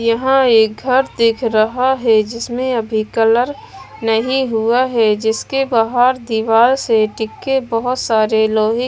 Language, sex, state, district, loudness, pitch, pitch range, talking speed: Hindi, female, Bihar, West Champaran, -15 LUFS, 230 Hz, 220-255 Hz, 140 wpm